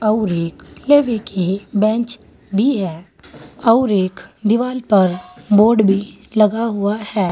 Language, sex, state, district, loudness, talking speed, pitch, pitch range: Hindi, female, Uttar Pradesh, Saharanpur, -17 LUFS, 125 wpm, 210 Hz, 195-230 Hz